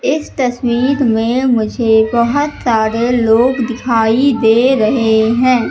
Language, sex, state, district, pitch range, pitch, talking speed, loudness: Hindi, female, Madhya Pradesh, Katni, 225-255 Hz, 240 Hz, 115 wpm, -13 LUFS